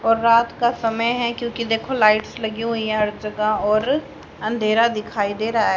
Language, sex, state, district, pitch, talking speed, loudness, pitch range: Hindi, female, Haryana, Charkhi Dadri, 225 Hz, 210 wpm, -20 LUFS, 215-235 Hz